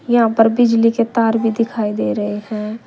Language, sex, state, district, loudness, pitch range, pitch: Hindi, female, Uttar Pradesh, Saharanpur, -16 LUFS, 215-230 Hz, 225 Hz